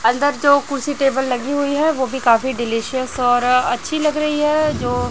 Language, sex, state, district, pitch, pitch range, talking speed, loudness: Hindi, female, Chhattisgarh, Raipur, 265 Hz, 245-290 Hz, 210 wpm, -18 LUFS